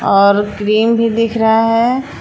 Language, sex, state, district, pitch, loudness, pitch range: Hindi, female, Jharkhand, Palamu, 225 Hz, -13 LUFS, 205-230 Hz